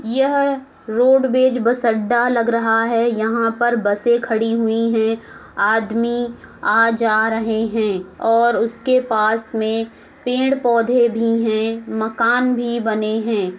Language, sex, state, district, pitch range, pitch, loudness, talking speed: Hindi, female, Uttar Pradesh, Muzaffarnagar, 220-240 Hz, 230 Hz, -18 LUFS, 130 wpm